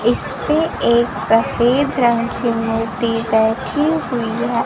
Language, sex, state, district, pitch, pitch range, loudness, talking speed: Hindi, female, Bihar, Kaimur, 235 Hz, 225-250 Hz, -17 LUFS, 115 wpm